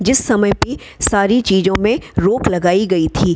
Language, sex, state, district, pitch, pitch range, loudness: Hindi, female, Bihar, Gaya, 200 Hz, 180-220 Hz, -15 LUFS